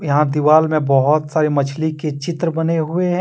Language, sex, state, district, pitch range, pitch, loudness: Hindi, male, Jharkhand, Deoghar, 150-165 Hz, 155 Hz, -17 LUFS